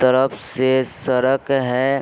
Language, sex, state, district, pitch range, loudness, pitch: Hindi, male, Bihar, Vaishali, 130-135 Hz, -19 LUFS, 130 Hz